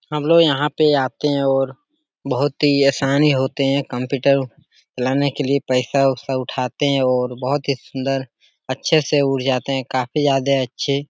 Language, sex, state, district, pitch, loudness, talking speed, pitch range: Hindi, male, Uttar Pradesh, Jalaun, 140 Hz, -19 LUFS, 175 wpm, 130-145 Hz